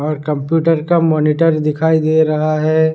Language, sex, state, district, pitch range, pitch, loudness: Hindi, male, Bihar, Sitamarhi, 155-160 Hz, 155 Hz, -14 LUFS